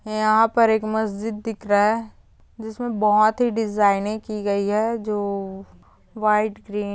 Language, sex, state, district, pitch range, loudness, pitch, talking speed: Hindi, female, Andhra Pradesh, Chittoor, 205-220 Hz, -21 LUFS, 215 Hz, 140 wpm